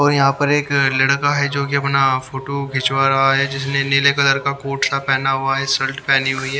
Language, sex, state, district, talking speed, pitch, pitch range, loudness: Hindi, male, Haryana, Jhajjar, 235 wpm, 135 Hz, 135-140 Hz, -17 LUFS